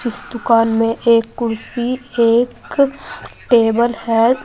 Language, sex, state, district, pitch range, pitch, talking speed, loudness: Hindi, female, Uttar Pradesh, Saharanpur, 230-245 Hz, 235 Hz, 110 wpm, -16 LUFS